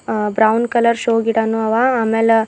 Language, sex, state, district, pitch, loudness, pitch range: Kannada, female, Karnataka, Bidar, 225 Hz, -16 LUFS, 220-235 Hz